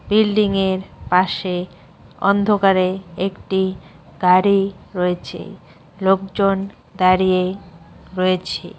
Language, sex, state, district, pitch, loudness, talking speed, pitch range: Bengali, female, West Bengal, North 24 Parganas, 185 Hz, -19 LUFS, 60 wpm, 180-195 Hz